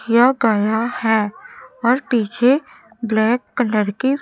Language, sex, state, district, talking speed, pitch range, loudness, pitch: Hindi, female, Chhattisgarh, Raipur, 115 wpm, 220-250 Hz, -18 LUFS, 230 Hz